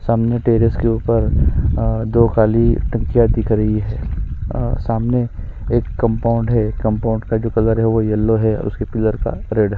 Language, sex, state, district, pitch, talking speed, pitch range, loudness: Hindi, female, Chhattisgarh, Sukma, 110 Hz, 180 wpm, 105-115 Hz, -17 LUFS